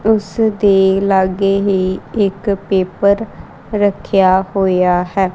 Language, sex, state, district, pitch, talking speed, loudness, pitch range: Punjabi, female, Punjab, Kapurthala, 195 Hz, 100 wpm, -14 LUFS, 190-205 Hz